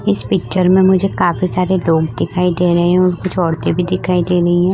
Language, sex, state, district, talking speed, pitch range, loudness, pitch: Hindi, female, Uttar Pradesh, Muzaffarnagar, 240 wpm, 175-185 Hz, -15 LUFS, 180 Hz